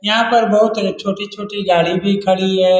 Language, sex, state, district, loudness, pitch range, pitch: Hindi, male, Bihar, Lakhisarai, -15 LUFS, 190-210 Hz, 200 Hz